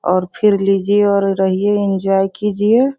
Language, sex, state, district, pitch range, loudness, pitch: Hindi, female, Bihar, Sitamarhi, 195-205 Hz, -15 LUFS, 200 Hz